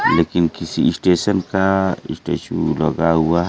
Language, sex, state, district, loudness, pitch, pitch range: Hindi, male, Bihar, Kaimur, -18 LUFS, 85 Hz, 80-95 Hz